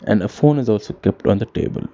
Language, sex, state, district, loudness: English, male, Karnataka, Bangalore, -19 LUFS